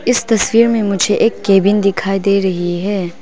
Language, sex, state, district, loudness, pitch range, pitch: Hindi, female, Arunachal Pradesh, Papum Pare, -14 LUFS, 195-225 Hz, 200 Hz